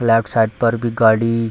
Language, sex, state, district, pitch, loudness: Hindi, male, Bihar, Darbhanga, 115 Hz, -16 LUFS